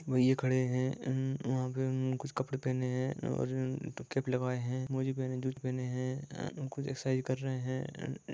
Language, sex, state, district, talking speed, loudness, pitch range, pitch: Hindi, male, Jharkhand, Sahebganj, 185 wpm, -35 LUFS, 130-135 Hz, 130 Hz